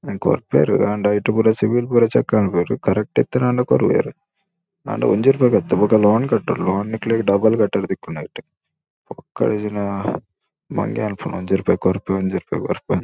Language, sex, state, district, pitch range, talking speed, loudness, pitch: Tulu, male, Karnataka, Dakshina Kannada, 100-125 Hz, 165 wpm, -19 LUFS, 110 Hz